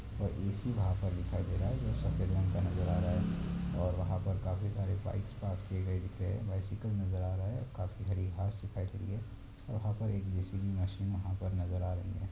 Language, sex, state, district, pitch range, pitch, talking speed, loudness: Hindi, male, Uttar Pradesh, Hamirpur, 95-100 Hz, 95 Hz, 230 wpm, -36 LUFS